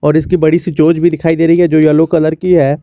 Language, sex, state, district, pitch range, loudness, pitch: Hindi, male, Jharkhand, Garhwa, 155-170 Hz, -11 LUFS, 165 Hz